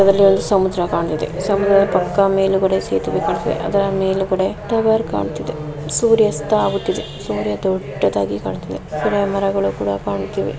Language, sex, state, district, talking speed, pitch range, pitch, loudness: Kannada, female, Karnataka, Mysore, 130 wpm, 150-195 Hz, 190 Hz, -18 LUFS